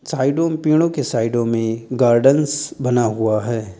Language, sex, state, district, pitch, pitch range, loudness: Hindi, male, Uttar Pradesh, Lalitpur, 125 Hz, 115-145 Hz, -18 LUFS